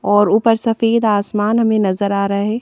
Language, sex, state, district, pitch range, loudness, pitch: Hindi, female, Madhya Pradesh, Bhopal, 205-225 Hz, -15 LUFS, 210 Hz